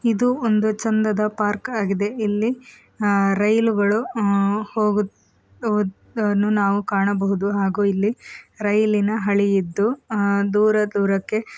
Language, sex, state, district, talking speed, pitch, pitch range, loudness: Kannada, female, Karnataka, Mysore, 95 wpm, 210 Hz, 200-215 Hz, -21 LUFS